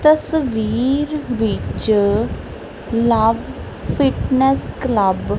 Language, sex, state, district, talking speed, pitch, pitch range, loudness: Punjabi, female, Punjab, Kapurthala, 65 wpm, 235 Hz, 220-270 Hz, -18 LUFS